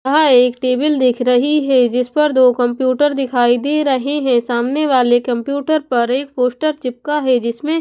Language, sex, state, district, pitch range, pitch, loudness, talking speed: Hindi, female, Punjab, Pathankot, 245-290 Hz, 255 Hz, -15 LUFS, 175 wpm